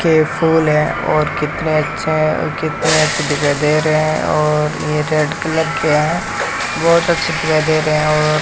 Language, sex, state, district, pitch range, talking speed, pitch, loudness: Hindi, male, Rajasthan, Bikaner, 150-160 Hz, 200 wpm, 155 Hz, -15 LUFS